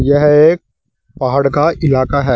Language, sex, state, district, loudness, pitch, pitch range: Hindi, male, Uttar Pradesh, Saharanpur, -13 LUFS, 140 Hz, 135-150 Hz